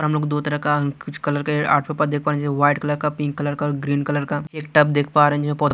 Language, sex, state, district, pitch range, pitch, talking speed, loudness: Hindi, male, Chhattisgarh, Raipur, 145-150 Hz, 145 Hz, 220 wpm, -20 LUFS